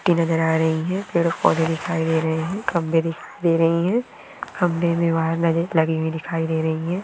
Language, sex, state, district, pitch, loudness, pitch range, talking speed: Hindi, female, West Bengal, Jhargram, 165 Hz, -21 LUFS, 160-170 Hz, 145 wpm